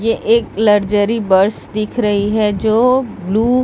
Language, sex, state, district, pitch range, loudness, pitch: Hindi, female, Delhi, New Delhi, 205-230 Hz, -15 LUFS, 215 Hz